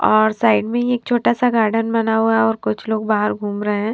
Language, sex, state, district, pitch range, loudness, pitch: Hindi, female, Punjab, Fazilka, 210-230 Hz, -18 LUFS, 220 Hz